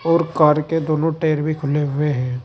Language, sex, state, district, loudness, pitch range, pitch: Hindi, male, Uttar Pradesh, Saharanpur, -19 LUFS, 150-160 Hz, 155 Hz